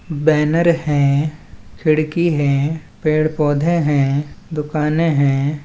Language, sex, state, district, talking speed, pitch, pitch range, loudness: Chhattisgarhi, male, Chhattisgarh, Balrampur, 95 wpm, 150 Hz, 145-155 Hz, -17 LUFS